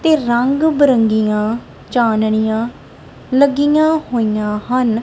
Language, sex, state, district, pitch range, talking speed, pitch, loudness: Punjabi, female, Punjab, Kapurthala, 220-280 Hz, 85 wpm, 240 Hz, -15 LUFS